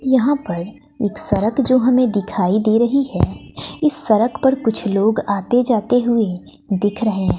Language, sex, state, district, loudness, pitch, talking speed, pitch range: Hindi, female, Bihar, West Champaran, -18 LUFS, 225 Hz, 170 wpm, 205-255 Hz